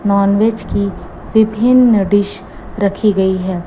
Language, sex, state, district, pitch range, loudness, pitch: Hindi, female, Chhattisgarh, Raipur, 200-220 Hz, -14 LUFS, 200 Hz